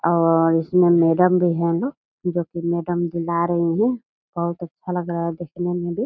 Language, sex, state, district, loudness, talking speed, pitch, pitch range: Hindi, female, Bihar, Purnia, -21 LUFS, 200 wpm, 170 Hz, 170-180 Hz